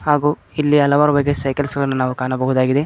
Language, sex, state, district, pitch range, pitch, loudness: Kannada, male, Karnataka, Koppal, 130-145 Hz, 140 Hz, -17 LUFS